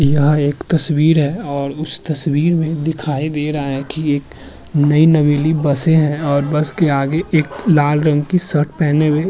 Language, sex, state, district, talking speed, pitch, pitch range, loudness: Hindi, male, Uttar Pradesh, Muzaffarnagar, 195 wpm, 150 Hz, 145-160 Hz, -16 LUFS